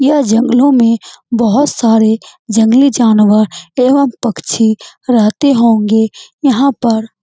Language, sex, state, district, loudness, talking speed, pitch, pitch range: Hindi, female, Bihar, Saran, -11 LUFS, 115 wpm, 235 Hz, 220-270 Hz